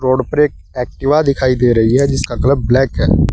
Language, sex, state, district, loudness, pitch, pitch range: Hindi, male, Uttar Pradesh, Saharanpur, -14 LUFS, 130 Hz, 120-140 Hz